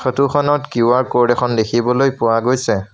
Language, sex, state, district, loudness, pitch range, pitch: Assamese, male, Assam, Sonitpur, -16 LUFS, 115-135 Hz, 125 Hz